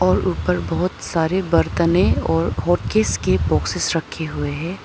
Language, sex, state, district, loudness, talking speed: Hindi, female, Arunachal Pradesh, Papum Pare, -20 LUFS, 150 wpm